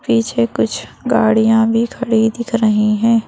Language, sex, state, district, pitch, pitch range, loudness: Hindi, female, Madhya Pradesh, Bhopal, 225 Hz, 215-230 Hz, -15 LUFS